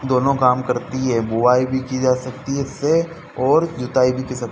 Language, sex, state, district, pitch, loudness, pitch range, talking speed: Hindi, male, Madhya Pradesh, Dhar, 130 Hz, -19 LUFS, 125-135 Hz, 185 wpm